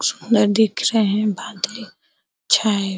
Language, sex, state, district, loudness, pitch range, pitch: Hindi, female, Bihar, Araria, -19 LUFS, 205-220 Hz, 210 Hz